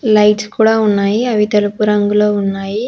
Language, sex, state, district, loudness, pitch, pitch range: Telugu, female, Telangana, Hyderabad, -13 LUFS, 210 Hz, 205-215 Hz